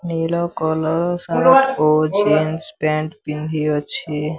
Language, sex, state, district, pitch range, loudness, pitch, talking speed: Odia, male, Odisha, Sambalpur, 155-170 Hz, -18 LUFS, 160 Hz, 95 wpm